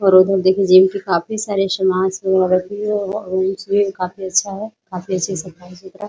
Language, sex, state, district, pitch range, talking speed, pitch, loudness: Hindi, female, Bihar, Muzaffarpur, 185-200 Hz, 225 wpm, 190 Hz, -17 LUFS